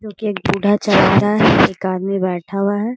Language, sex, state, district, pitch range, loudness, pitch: Hindi, female, Bihar, Gaya, 190-210 Hz, -16 LUFS, 200 Hz